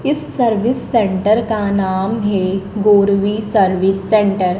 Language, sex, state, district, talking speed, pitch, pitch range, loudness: Hindi, female, Madhya Pradesh, Dhar, 130 wpm, 205 Hz, 195-220 Hz, -15 LUFS